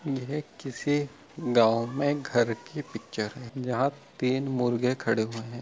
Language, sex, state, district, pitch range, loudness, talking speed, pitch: Hindi, male, Jharkhand, Jamtara, 120-140 Hz, -28 LUFS, 150 wpm, 130 Hz